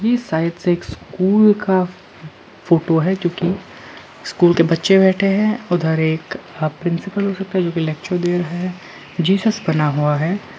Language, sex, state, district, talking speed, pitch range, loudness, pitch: Hindi, male, Arunachal Pradesh, Lower Dibang Valley, 170 wpm, 165-195 Hz, -18 LUFS, 175 Hz